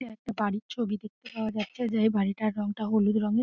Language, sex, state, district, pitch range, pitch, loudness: Bengali, female, West Bengal, Dakshin Dinajpur, 210-230 Hz, 215 Hz, -29 LUFS